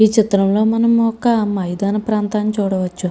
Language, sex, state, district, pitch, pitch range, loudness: Telugu, female, Andhra Pradesh, Srikakulam, 210 Hz, 195-220 Hz, -17 LUFS